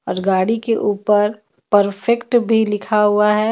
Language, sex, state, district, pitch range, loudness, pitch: Hindi, female, Jharkhand, Ranchi, 205-225 Hz, -17 LUFS, 210 Hz